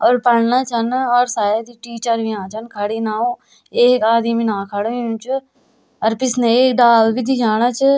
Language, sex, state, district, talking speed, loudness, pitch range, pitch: Garhwali, female, Uttarakhand, Tehri Garhwal, 175 wpm, -17 LUFS, 225-250 Hz, 235 Hz